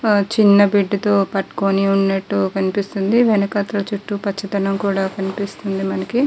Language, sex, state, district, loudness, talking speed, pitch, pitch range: Telugu, female, Andhra Pradesh, Guntur, -18 LUFS, 115 wpm, 200 Hz, 195-205 Hz